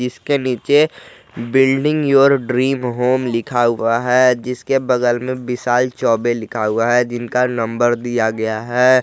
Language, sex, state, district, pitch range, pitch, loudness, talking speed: Hindi, male, Jharkhand, Garhwa, 120-130 Hz, 125 Hz, -16 LUFS, 145 wpm